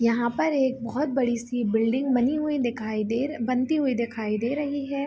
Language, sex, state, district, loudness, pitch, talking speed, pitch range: Hindi, female, Bihar, Begusarai, -25 LUFS, 250 Hz, 215 wpm, 230-280 Hz